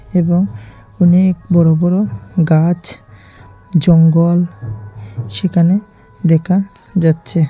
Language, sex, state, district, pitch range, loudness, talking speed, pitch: Bengali, male, Tripura, Unakoti, 110-175 Hz, -14 LUFS, 70 wpm, 165 Hz